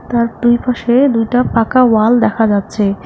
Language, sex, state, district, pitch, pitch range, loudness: Bengali, female, West Bengal, Alipurduar, 235 Hz, 220-245 Hz, -13 LUFS